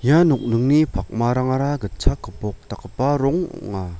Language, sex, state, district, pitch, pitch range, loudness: Garo, male, Meghalaya, West Garo Hills, 120 Hz, 100-140 Hz, -21 LUFS